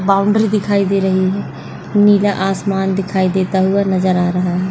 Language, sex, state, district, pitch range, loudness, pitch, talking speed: Hindi, female, Rajasthan, Nagaur, 185-200 Hz, -15 LUFS, 195 Hz, 180 wpm